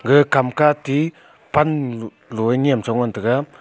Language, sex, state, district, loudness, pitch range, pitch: Wancho, male, Arunachal Pradesh, Longding, -19 LUFS, 120-150 Hz, 135 Hz